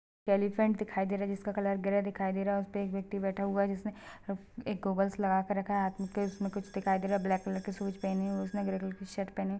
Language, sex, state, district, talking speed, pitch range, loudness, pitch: Hindi, female, Chhattisgarh, Balrampur, 285 wpm, 195-200 Hz, -34 LUFS, 195 Hz